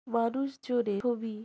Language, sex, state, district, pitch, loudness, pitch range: Bengali, female, West Bengal, Jhargram, 235 Hz, -31 LUFS, 225-245 Hz